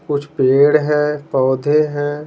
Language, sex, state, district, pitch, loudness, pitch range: Hindi, male, Bihar, Patna, 145 Hz, -15 LUFS, 140-150 Hz